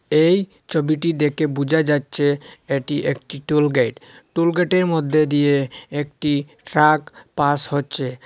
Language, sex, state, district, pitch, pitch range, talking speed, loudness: Bengali, male, Assam, Hailakandi, 150 Hz, 145-155 Hz, 125 wpm, -20 LUFS